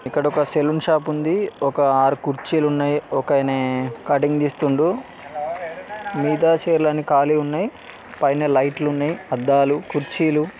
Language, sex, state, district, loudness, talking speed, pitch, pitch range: Telugu, male, Telangana, Karimnagar, -20 LUFS, 135 wpm, 145 Hz, 140-155 Hz